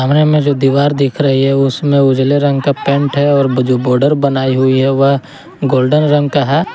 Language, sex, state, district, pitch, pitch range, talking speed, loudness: Hindi, male, Jharkhand, Ranchi, 140 Hz, 135-145 Hz, 205 wpm, -12 LUFS